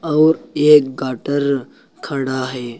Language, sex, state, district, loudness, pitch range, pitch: Hindi, male, Uttar Pradesh, Saharanpur, -17 LUFS, 130-150 Hz, 140 Hz